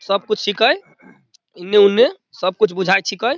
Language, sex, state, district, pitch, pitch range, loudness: Maithili, male, Bihar, Samastipur, 205 Hz, 195-225 Hz, -16 LUFS